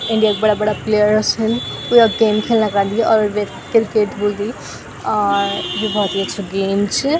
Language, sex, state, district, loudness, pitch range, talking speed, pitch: Garhwali, female, Uttarakhand, Tehri Garhwal, -17 LUFS, 205-220 Hz, 185 wpm, 210 Hz